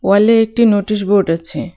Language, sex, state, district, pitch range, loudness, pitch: Bengali, female, West Bengal, Cooch Behar, 195-220 Hz, -13 LUFS, 205 Hz